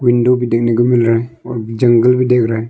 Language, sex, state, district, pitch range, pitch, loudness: Hindi, male, Arunachal Pradesh, Longding, 115-125 Hz, 120 Hz, -13 LUFS